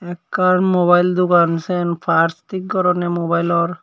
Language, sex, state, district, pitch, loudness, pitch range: Chakma, male, Tripura, Unakoti, 175 Hz, -17 LUFS, 170-180 Hz